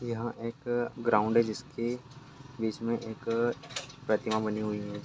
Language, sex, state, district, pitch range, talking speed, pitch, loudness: Hindi, male, Bihar, Sitamarhi, 110-125 Hz, 165 wpm, 115 Hz, -32 LUFS